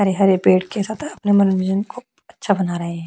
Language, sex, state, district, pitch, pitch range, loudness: Hindi, female, Chhattisgarh, Korba, 200 Hz, 185-220 Hz, -18 LUFS